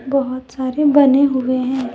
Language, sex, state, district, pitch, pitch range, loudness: Hindi, female, Jharkhand, Deoghar, 265 Hz, 255-275 Hz, -16 LUFS